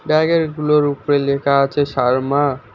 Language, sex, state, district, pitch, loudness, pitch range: Bengali, male, West Bengal, Alipurduar, 140 Hz, -17 LUFS, 140-150 Hz